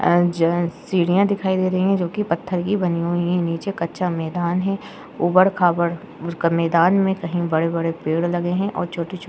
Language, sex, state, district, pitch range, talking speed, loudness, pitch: Hindi, female, Uttar Pradesh, Jyotiba Phule Nagar, 170-185 Hz, 160 wpm, -20 LUFS, 175 Hz